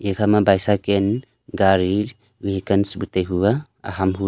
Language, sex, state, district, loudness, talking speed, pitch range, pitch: Wancho, male, Arunachal Pradesh, Longding, -20 LUFS, 140 wpm, 95-105 Hz, 100 Hz